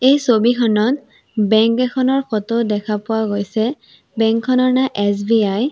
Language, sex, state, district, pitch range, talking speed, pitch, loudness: Assamese, female, Assam, Sonitpur, 215-255 Hz, 135 wpm, 230 Hz, -17 LUFS